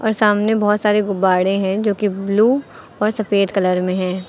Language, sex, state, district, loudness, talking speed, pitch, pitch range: Hindi, female, Uttar Pradesh, Lucknow, -17 LUFS, 180 wpm, 205 Hz, 190-210 Hz